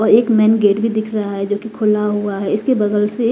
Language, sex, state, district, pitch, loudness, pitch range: Hindi, female, Himachal Pradesh, Shimla, 210 Hz, -16 LUFS, 205-220 Hz